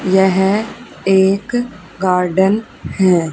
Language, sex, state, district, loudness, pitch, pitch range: Hindi, female, Haryana, Charkhi Dadri, -15 LUFS, 190 Hz, 185-210 Hz